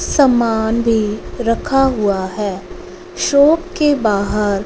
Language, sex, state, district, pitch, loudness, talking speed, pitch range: Hindi, female, Punjab, Fazilka, 225 Hz, -15 LUFS, 105 wpm, 205-270 Hz